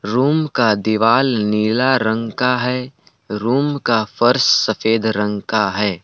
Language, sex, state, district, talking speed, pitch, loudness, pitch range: Hindi, male, Jharkhand, Palamu, 140 wpm, 115 Hz, -17 LUFS, 105-125 Hz